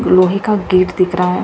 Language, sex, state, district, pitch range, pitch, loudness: Hindi, female, Bihar, Katihar, 180-190 Hz, 185 Hz, -14 LUFS